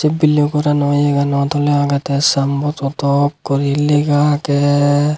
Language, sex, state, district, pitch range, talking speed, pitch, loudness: Chakma, male, Tripura, Unakoti, 140-150 Hz, 140 wpm, 145 Hz, -15 LUFS